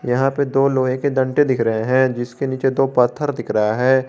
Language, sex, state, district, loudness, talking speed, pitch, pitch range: Hindi, male, Jharkhand, Garhwa, -18 LUFS, 235 wpm, 130 Hz, 125-135 Hz